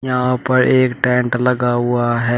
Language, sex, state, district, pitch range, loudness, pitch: Hindi, male, Uttar Pradesh, Shamli, 120-125 Hz, -16 LUFS, 125 Hz